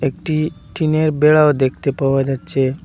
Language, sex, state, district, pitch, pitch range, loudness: Bengali, male, Assam, Hailakandi, 150 Hz, 135-155 Hz, -17 LUFS